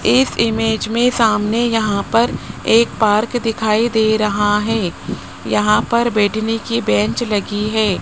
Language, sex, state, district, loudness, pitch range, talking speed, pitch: Hindi, male, Rajasthan, Jaipur, -16 LUFS, 210-230 Hz, 140 wpm, 220 Hz